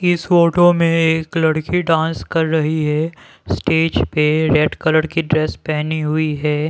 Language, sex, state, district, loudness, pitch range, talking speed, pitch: Hindi, male, Punjab, Pathankot, -17 LUFS, 155-165 Hz, 160 wpm, 160 Hz